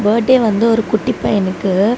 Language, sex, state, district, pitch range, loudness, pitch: Tamil, female, Tamil Nadu, Namakkal, 205-230 Hz, -14 LUFS, 220 Hz